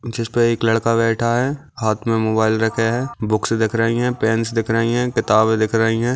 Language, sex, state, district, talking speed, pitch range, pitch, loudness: Hindi, male, Maharashtra, Aurangabad, 215 wpm, 110-120 Hz, 115 Hz, -18 LUFS